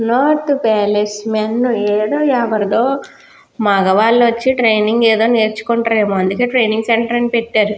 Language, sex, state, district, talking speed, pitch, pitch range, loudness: Telugu, female, Andhra Pradesh, Guntur, 130 wpm, 225 Hz, 215-240 Hz, -14 LUFS